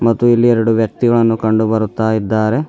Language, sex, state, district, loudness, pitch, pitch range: Kannada, male, Karnataka, Bidar, -14 LUFS, 115 Hz, 110-120 Hz